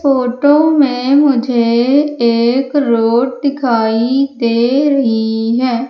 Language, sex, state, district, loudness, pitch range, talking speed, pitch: Hindi, female, Madhya Pradesh, Umaria, -13 LUFS, 235-280 Hz, 90 wpm, 250 Hz